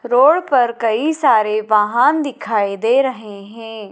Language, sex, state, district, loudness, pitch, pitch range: Hindi, female, Madhya Pradesh, Dhar, -15 LUFS, 230 Hz, 215-265 Hz